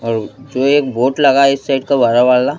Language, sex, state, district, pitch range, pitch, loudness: Hindi, male, Madhya Pradesh, Bhopal, 125-140 Hz, 135 Hz, -13 LUFS